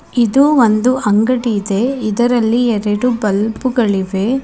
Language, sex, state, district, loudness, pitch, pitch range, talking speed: Kannada, female, Karnataka, Bidar, -14 LUFS, 230 Hz, 210-250 Hz, 95 wpm